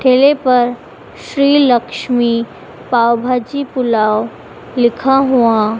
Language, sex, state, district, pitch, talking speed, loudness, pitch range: Hindi, female, Madhya Pradesh, Dhar, 245 Hz, 95 wpm, -13 LUFS, 235-265 Hz